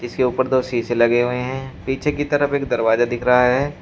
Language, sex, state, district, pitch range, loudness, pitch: Hindi, male, Uttar Pradesh, Shamli, 120-135 Hz, -19 LUFS, 125 Hz